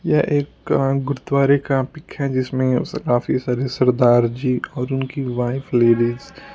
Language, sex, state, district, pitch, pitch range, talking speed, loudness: Hindi, male, Punjab, Kapurthala, 130 Hz, 125-140 Hz, 155 wpm, -19 LUFS